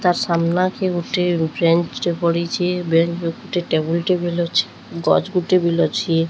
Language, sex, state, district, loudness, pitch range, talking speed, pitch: Odia, female, Odisha, Sambalpur, -19 LUFS, 165-180 Hz, 145 wpm, 170 Hz